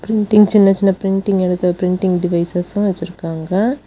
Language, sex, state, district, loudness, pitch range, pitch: Tamil, female, Tamil Nadu, Kanyakumari, -16 LUFS, 180-200 Hz, 190 Hz